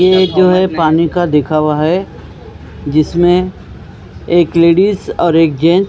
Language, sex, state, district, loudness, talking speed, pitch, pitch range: Hindi, male, Maharashtra, Mumbai Suburban, -12 LUFS, 155 wpm, 165 Hz, 150-180 Hz